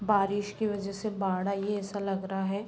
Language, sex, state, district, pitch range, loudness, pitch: Hindi, female, Bihar, Muzaffarpur, 195-205 Hz, -31 LUFS, 200 Hz